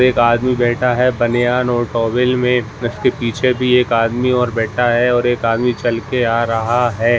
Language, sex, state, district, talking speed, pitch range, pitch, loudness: Hindi, male, Jharkhand, Jamtara, 200 wpm, 115-125 Hz, 120 Hz, -15 LUFS